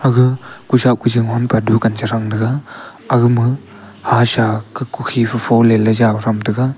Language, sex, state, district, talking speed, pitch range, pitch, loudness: Wancho, male, Arunachal Pradesh, Longding, 140 wpm, 110-125 Hz, 115 Hz, -15 LUFS